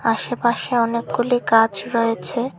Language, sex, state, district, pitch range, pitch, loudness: Bengali, female, Tripura, Unakoti, 225-245 Hz, 235 Hz, -20 LUFS